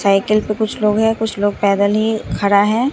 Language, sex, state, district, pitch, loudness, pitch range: Hindi, female, Bihar, Katihar, 210 Hz, -16 LUFS, 200-220 Hz